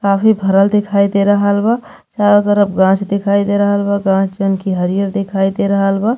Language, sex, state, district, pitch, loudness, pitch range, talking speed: Bhojpuri, female, Uttar Pradesh, Deoria, 200 Hz, -14 LUFS, 195-205 Hz, 205 wpm